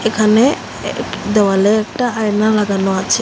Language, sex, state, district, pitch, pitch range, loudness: Bengali, female, Assam, Hailakandi, 215 Hz, 205-220 Hz, -15 LUFS